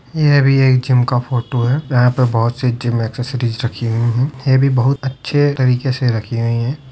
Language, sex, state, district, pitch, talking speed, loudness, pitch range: Hindi, male, Uttar Pradesh, Budaun, 125 Hz, 215 wpm, -16 LUFS, 120-135 Hz